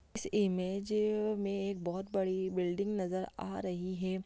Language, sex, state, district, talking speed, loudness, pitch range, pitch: Hindi, female, Bihar, Darbhanga, 155 wpm, -35 LUFS, 185-200 Hz, 190 Hz